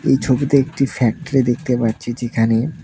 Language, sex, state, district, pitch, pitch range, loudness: Bengali, male, West Bengal, Cooch Behar, 125 Hz, 115-135 Hz, -18 LUFS